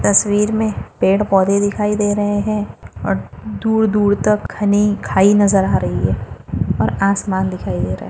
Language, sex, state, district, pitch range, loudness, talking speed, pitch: Hindi, female, Maharashtra, Dhule, 195-210 Hz, -17 LUFS, 180 wpm, 205 Hz